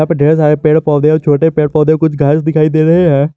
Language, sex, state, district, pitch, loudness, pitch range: Hindi, male, Jharkhand, Garhwa, 155 Hz, -10 LUFS, 150-160 Hz